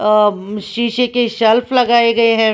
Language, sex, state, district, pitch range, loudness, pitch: Hindi, female, Maharashtra, Washim, 215-240 Hz, -14 LUFS, 230 Hz